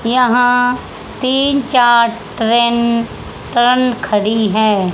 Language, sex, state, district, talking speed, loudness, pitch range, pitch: Hindi, female, Haryana, Charkhi Dadri, 85 wpm, -13 LUFS, 225-250 Hz, 235 Hz